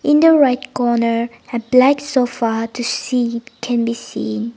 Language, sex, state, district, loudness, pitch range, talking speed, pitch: English, female, Nagaland, Dimapur, -17 LUFS, 230-255 Hz, 155 wpm, 240 Hz